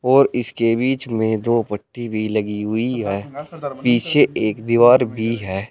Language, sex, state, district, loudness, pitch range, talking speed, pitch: Hindi, male, Uttar Pradesh, Saharanpur, -19 LUFS, 110-125 Hz, 155 wpm, 115 Hz